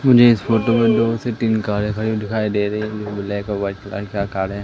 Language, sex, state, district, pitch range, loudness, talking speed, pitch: Hindi, male, Madhya Pradesh, Katni, 100-115 Hz, -19 LUFS, 260 wpm, 105 Hz